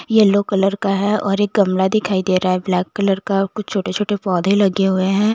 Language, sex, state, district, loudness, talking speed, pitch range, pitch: Hindi, female, Chandigarh, Chandigarh, -17 LUFS, 235 wpm, 190-205 Hz, 195 Hz